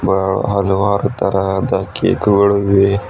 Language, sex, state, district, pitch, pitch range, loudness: Kannada, female, Karnataka, Bidar, 100 Hz, 95-100 Hz, -15 LUFS